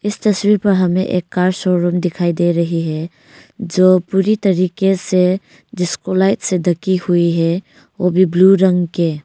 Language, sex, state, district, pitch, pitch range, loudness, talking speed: Hindi, female, Arunachal Pradesh, Longding, 180 Hz, 175-190 Hz, -15 LUFS, 170 wpm